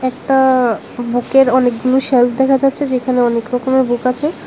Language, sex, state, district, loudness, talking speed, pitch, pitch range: Bengali, female, Tripura, West Tripura, -14 LUFS, 145 wpm, 255 Hz, 245-265 Hz